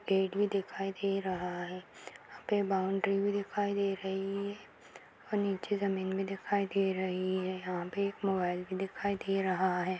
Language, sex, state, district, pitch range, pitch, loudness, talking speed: Kumaoni, female, Uttarakhand, Uttarkashi, 185-200 Hz, 195 Hz, -34 LUFS, 185 wpm